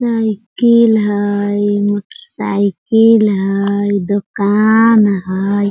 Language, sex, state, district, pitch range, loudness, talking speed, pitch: Hindi, female, Bihar, Sitamarhi, 200-225 Hz, -13 LUFS, 75 wpm, 205 Hz